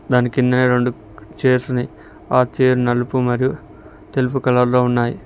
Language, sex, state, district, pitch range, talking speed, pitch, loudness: Telugu, male, Telangana, Mahabubabad, 120-125 Hz, 135 wpm, 125 Hz, -18 LUFS